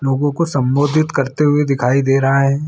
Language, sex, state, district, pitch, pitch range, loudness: Hindi, male, Chhattisgarh, Bilaspur, 140 Hz, 135-145 Hz, -15 LUFS